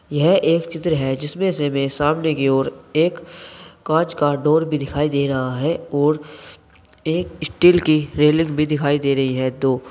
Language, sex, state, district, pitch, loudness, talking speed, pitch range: Hindi, male, Uttar Pradesh, Saharanpur, 150 Hz, -19 LUFS, 180 wpm, 140-160 Hz